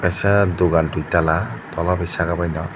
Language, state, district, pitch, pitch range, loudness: Kokborok, Tripura, Dhalai, 85 Hz, 80-90 Hz, -19 LUFS